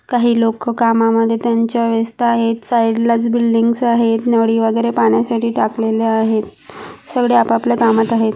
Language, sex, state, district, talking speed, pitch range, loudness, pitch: Marathi, female, Maharashtra, Pune, 130 wpm, 225-235 Hz, -15 LUFS, 230 Hz